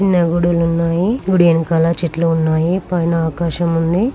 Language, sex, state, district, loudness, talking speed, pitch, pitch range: Telugu, female, Telangana, Karimnagar, -16 LUFS, 115 wpm, 170 Hz, 165-175 Hz